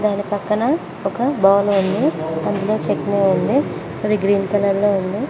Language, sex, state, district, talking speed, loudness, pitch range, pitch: Telugu, female, Telangana, Mahabubabad, 145 wpm, -18 LUFS, 195-210 Hz, 205 Hz